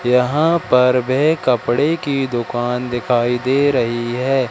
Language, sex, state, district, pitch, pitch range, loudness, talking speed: Hindi, male, Madhya Pradesh, Katni, 125 Hz, 120-140 Hz, -17 LUFS, 135 wpm